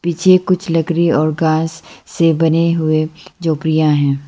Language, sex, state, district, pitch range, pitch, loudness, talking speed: Hindi, female, Arunachal Pradesh, Lower Dibang Valley, 155-170 Hz, 160 Hz, -15 LUFS, 140 wpm